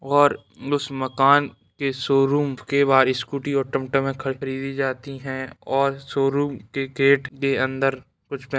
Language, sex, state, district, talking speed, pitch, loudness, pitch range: Hindi, male, Bihar, Madhepura, 145 wpm, 135 Hz, -22 LUFS, 135-140 Hz